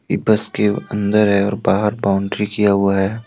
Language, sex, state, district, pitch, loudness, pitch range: Hindi, male, Jharkhand, Deoghar, 100 Hz, -17 LUFS, 100-105 Hz